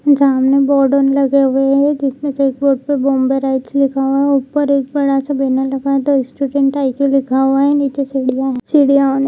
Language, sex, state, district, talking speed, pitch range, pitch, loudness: Hindi, female, Bihar, Jamui, 195 wpm, 270-280 Hz, 275 Hz, -14 LUFS